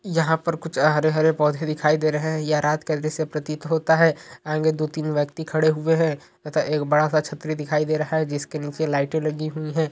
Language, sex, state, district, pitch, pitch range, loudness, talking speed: Hindi, male, Uttar Pradesh, Ghazipur, 155 Hz, 150-160 Hz, -22 LUFS, 230 wpm